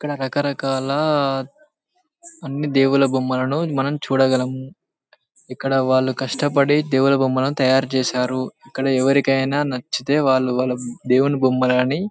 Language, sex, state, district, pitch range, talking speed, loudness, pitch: Telugu, male, Telangana, Karimnagar, 130-145 Hz, 115 wpm, -19 LUFS, 135 Hz